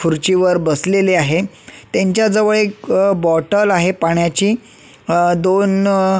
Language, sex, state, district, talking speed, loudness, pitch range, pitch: Marathi, male, Maharashtra, Solapur, 105 wpm, -15 LUFS, 170-200 Hz, 190 Hz